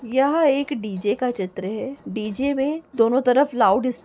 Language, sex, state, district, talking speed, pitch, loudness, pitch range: Hindi, female, Uttar Pradesh, Deoria, 175 wpm, 255 Hz, -21 LUFS, 215-275 Hz